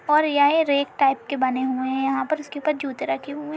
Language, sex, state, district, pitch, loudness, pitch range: Hindi, female, Uttar Pradesh, Budaun, 280 Hz, -22 LUFS, 265-295 Hz